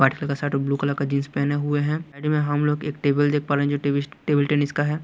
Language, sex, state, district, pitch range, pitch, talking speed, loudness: Hindi, male, Chhattisgarh, Raipur, 140-150 Hz, 145 Hz, 335 wpm, -23 LUFS